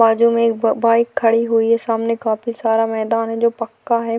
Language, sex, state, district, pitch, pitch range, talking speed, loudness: Hindi, female, Uttarakhand, Tehri Garhwal, 230 Hz, 225-230 Hz, 230 wpm, -17 LUFS